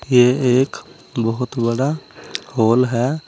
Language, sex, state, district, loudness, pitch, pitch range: Hindi, male, Uttar Pradesh, Saharanpur, -18 LUFS, 125 Hz, 115-130 Hz